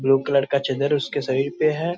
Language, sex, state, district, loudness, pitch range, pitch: Hindi, male, Bihar, Muzaffarpur, -22 LUFS, 135-145 Hz, 140 Hz